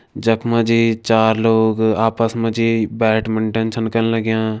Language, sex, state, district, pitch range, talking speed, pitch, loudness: Kumaoni, male, Uttarakhand, Tehri Garhwal, 110-115 Hz, 130 wpm, 115 Hz, -17 LUFS